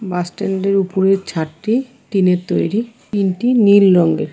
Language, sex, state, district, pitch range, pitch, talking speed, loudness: Bengali, female, West Bengal, Alipurduar, 180-215 Hz, 195 Hz, 165 wpm, -16 LUFS